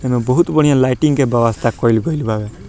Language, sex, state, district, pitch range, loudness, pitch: Bhojpuri, male, Bihar, Muzaffarpur, 115-145 Hz, -15 LUFS, 125 Hz